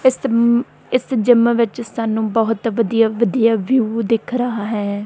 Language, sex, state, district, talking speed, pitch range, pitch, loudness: Punjabi, female, Punjab, Kapurthala, 140 wpm, 225-245 Hz, 230 Hz, -17 LUFS